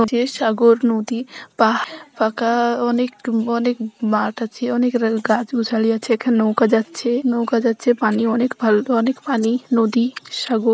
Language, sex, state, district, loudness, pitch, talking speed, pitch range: Bengali, female, West Bengal, North 24 Parganas, -19 LUFS, 235 Hz, 115 wpm, 225-245 Hz